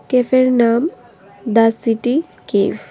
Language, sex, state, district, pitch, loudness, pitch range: Bengali, female, Tripura, West Tripura, 240 Hz, -16 LUFS, 225-255 Hz